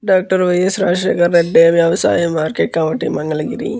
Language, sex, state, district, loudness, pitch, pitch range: Telugu, male, Andhra Pradesh, Guntur, -15 LUFS, 170 Hz, 160-185 Hz